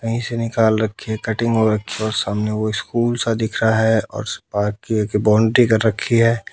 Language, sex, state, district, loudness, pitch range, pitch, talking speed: Hindi, male, Haryana, Jhajjar, -19 LUFS, 110-115 Hz, 110 Hz, 230 wpm